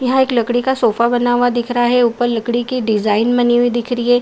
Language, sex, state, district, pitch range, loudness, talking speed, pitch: Hindi, female, Bihar, Saharsa, 235-245 Hz, -15 LUFS, 285 wpm, 240 Hz